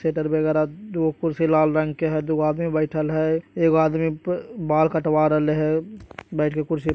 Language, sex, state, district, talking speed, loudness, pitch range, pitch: Magahi, male, Bihar, Jahanabad, 205 wpm, -22 LUFS, 155-160 Hz, 155 Hz